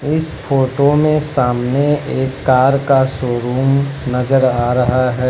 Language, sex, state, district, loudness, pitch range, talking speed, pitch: Hindi, male, Uttar Pradesh, Lucknow, -15 LUFS, 125-140 Hz, 135 wpm, 130 Hz